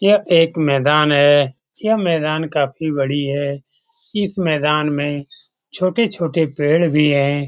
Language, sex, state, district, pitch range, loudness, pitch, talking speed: Hindi, male, Bihar, Lakhisarai, 145-180 Hz, -17 LUFS, 150 Hz, 130 wpm